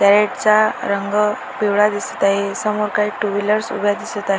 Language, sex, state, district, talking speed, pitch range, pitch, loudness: Marathi, female, Maharashtra, Dhule, 190 wpm, 200-210 Hz, 205 Hz, -18 LUFS